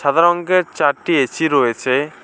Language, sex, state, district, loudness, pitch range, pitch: Bengali, male, West Bengal, Alipurduar, -16 LUFS, 140-175 Hz, 160 Hz